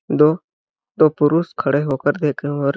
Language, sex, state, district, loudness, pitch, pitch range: Hindi, male, Chhattisgarh, Balrampur, -18 LUFS, 145 Hz, 140-155 Hz